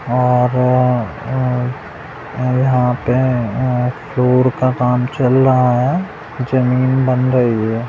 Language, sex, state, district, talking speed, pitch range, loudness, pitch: Hindi, male, Bihar, Purnia, 100 wpm, 125-130 Hz, -15 LUFS, 125 Hz